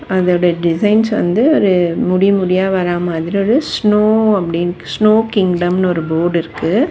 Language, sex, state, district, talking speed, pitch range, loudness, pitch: Tamil, female, Tamil Nadu, Chennai, 130 wpm, 175-210 Hz, -14 LUFS, 185 Hz